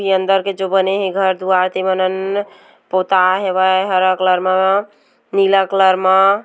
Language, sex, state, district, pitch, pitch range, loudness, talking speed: Hindi, female, Chhattisgarh, Korba, 190 Hz, 185-195 Hz, -15 LUFS, 160 wpm